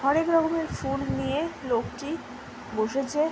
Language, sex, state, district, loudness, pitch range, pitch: Bengali, female, West Bengal, Purulia, -28 LUFS, 275-320 Hz, 295 Hz